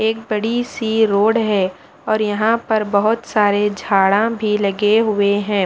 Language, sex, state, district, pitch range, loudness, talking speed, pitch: Hindi, female, Punjab, Fazilka, 205-220 Hz, -17 LUFS, 160 wpm, 215 Hz